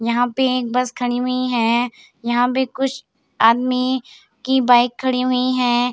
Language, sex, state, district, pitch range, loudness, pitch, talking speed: Hindi, female, Bihar, Samastipur, 245-255 Hz, -18 LUFS, 250 Hz, 160 wpm